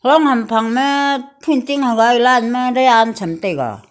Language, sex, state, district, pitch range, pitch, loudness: Wancho, female, Arunachal Pradesh, Longding, 230-280 Hz, 250 Hz, -15 LUFS